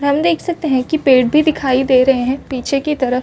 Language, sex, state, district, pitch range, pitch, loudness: Hindi, female, Chhattisgarh, Rajnandgaon, 255-305 Hz, 270 Hz, -15 LUFS